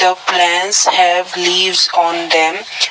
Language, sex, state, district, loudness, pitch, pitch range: English, male, Assam, Kamrup Metropolitan, -12 LUFS, 180 Hz, 175-185 Hz